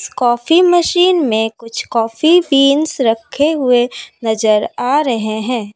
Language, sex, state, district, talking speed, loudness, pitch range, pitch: Hindi, female, Assam, Kamrup Metropolitan, 125 wpm, -14 LUFS, 225-310 Hz, 245 Hz